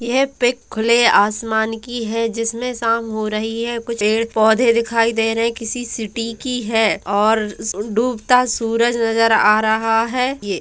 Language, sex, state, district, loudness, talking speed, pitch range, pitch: Hindi, female, Bihar, Gaya, -18 LUFS, 165 wpm, 220-235 Hz, 230 Hz